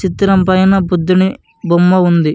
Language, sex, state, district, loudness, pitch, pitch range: Telugu, male, Andhra Pradesh, Anantapur, -12 LUFS, 185 Hz, 175-190 Hz